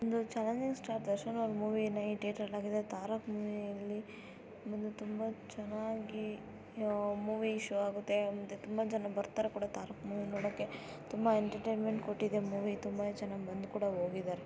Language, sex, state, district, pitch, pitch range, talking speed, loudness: Kannada, female, Karnataka, Raichur, 210 Hz, 205-220 Hz, 120 wpm, -38 LUFS